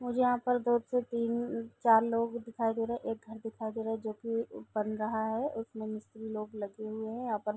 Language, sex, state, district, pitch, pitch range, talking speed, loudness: Hindi, female, Bihar, Gopalganj, 225 Hz, 220-235 Hz, 270 wpm, -33 LUFS